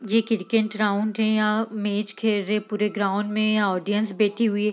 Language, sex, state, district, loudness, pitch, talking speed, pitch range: Hindi, female, Bihar, East Champaran, -23 LUFS, 210 Hz, 205 wpm, 205-215 Hz